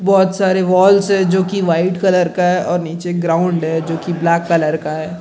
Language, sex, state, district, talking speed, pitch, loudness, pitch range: Hindi, male, Bihar, Gaya, 220 wpm, 175 Hz, -15 LUFS, 165-190 Hz